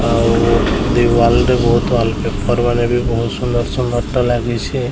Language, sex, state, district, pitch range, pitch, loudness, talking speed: Odia, male, Odisha, Sambalpur, 115-120 Hz, 120 Hz, -15 LUFS, 160 wpm